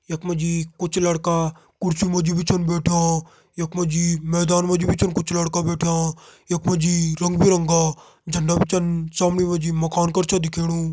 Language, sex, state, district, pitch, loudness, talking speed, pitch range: Garhwali, male, Uttarakhand, Tehri Garhwal, 170 Hz, -21 LUFS, 185 wpm, 165-175 Hz